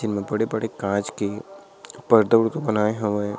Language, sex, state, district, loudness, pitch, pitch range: Chhattisgarhi, male, Chhattisgarh, Sarguja, -22 LUFS, 110 Hz, 105-115 Hz